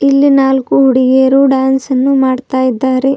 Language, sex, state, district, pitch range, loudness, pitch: Kannada, female, Karnataka, Bidar, 260-270 Hz, -10 LUFS, 265 Hz